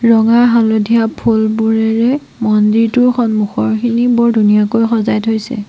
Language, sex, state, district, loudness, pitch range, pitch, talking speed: Assamese, female, Assam, Sonitpur, -12 LUFS, 220-235 Hz, 225 Hz, 95 wpm